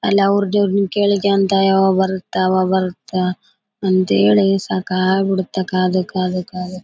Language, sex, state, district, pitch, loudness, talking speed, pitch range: Kannada, female, Karnataka, Bellary, 190 Hz, -17 LUFS, 150 wpm, 185-195 Hz